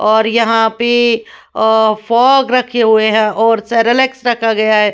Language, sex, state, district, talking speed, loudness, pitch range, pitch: Hindi, female, Maharashtra, Washim, 160 wpm, -12 LUFS, 220-240 Hz, 225 Hz